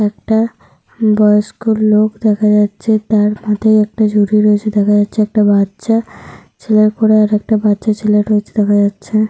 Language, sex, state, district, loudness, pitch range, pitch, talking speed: Bengali, female, Jharkhand, Sahebganj, -13 LUFS, 210-215 Hz, 210 Hz, 140 wpm